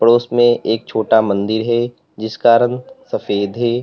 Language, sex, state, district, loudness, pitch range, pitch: Hindi, male, Uttar Pradesh, Lalitpur, -16 LUFS, 110-120 Hz, 115 Hz